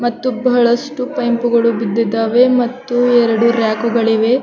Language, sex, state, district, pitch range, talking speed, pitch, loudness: Kannada, female, Karnataka, Bidar, 230-250 Hz, 120 wpm, 240 Hz, -14 LUFS